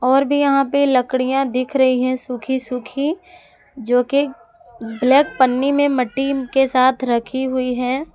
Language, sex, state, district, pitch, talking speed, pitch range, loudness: Hindi, female, Jharkhand, Ranchi, 260 Hz, 155 wpm, 250-275 Hz, -18 LUFS